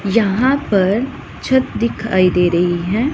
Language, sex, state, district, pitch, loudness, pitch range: Hindi, female, Punjab, Pathankot, 210 Hz, -16 LUFS, 185-255 Hz